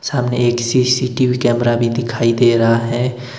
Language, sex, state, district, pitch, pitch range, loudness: Hindi, male, Himachal Pradesh, Shimla, 120 Hz, 120-125 Hz, -15 LUFS